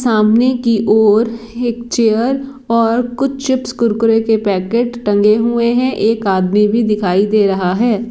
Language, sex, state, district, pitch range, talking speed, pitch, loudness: Hindi, female, Bihar, East Champaran, 210-240 Hz, 155 wpm, 230 Hz, -14 LUFS